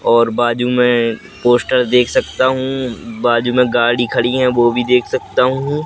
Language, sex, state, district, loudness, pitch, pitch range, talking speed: Hindi, male, Madhya Pradesh, Katni, -15 LUFS, 125 Hz, 120-130 Hz, 175 wpm